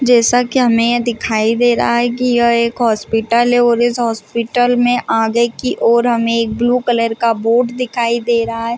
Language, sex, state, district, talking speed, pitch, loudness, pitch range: Hindi, female, Chhattisgarh, Balrampur, 205 wpm, 235 Hz, -14 LUFS, 230-245 Hz